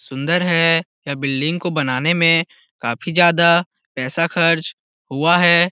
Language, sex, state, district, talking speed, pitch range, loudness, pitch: Hindi, male, Bihar, Araria, 135 wpm, 140-170 Hz, -17 LUFS, 165 Hz